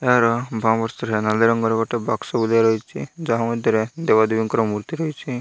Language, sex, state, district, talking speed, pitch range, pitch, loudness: Odia, male, Odisha, Malkangiri, 145 wpm, 110-125 Hz, 115 Hz, -20 LUFS